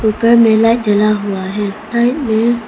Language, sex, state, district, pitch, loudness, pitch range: Hindi, female, Arunachal Pradesh, Papum Pare, 220 Hz, -13 LUFS, 210-235 Hz